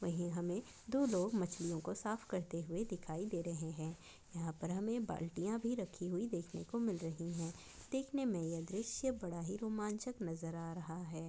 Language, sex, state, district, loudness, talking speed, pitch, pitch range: Hindi, female, Maharashtra, Pune, -42 LUFS, 180 wpm, 180 Hz, 165-215 Hz